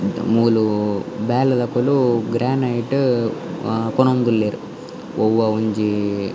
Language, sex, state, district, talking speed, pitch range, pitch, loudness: Tulu, male, Karnataka, Dakshina Kannada, 55 wpm, 110-125 Hz, 115 Hz, -19 LUFS